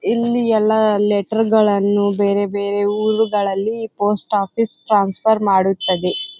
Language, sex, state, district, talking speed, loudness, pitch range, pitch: Kannada, female, Karnataka, Bijapur, 110 wpm, -17 LUFS, 200-220 Hz, 205 Hz